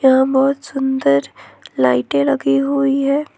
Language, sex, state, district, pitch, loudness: Hindi, female, Jharkhand, Ranchi, 265 Hz, -16 LUFS